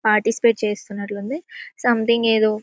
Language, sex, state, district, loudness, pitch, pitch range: Telugu, female, Telangana, Karimnagar, -20 LUFS, 220 Hz, 210-235 Hz